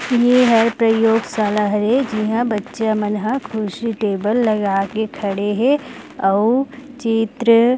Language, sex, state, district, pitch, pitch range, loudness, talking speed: Chhattisgarhi, female, Chhattisgarh, Rajnandgaon, 225 Hz, 210-240 Hz, -18 LUFS, 125 wpm